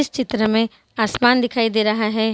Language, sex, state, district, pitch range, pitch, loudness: Hindi, female, Bihar, Sitamarhi, 220-245 Hz, 225 Hz, -19 LUFS